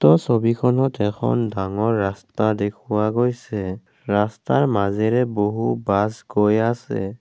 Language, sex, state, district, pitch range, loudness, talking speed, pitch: Assamese, male, Assam, Kamrup Metropolitan, 100-115 Hz, -21 LUFS, 100 wpm, 105 Hz